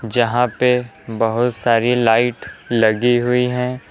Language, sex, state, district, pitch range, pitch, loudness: Hindi, male, Uttar Pradesh, Lucknow, 115-125 Hz, 120 Hz, -17 LUFS